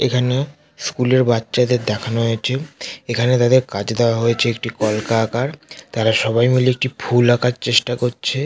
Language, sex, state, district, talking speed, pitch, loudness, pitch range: Bengali, male, West Bengal, North 24 Parganas, 155 wpm, 120 Hz, -18 LUFS, 115-130 Hz